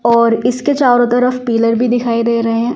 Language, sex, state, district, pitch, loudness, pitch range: Hindi, female, Delhi, New Delhi, 240 Hz, -13 LUFS, 230-245 Hz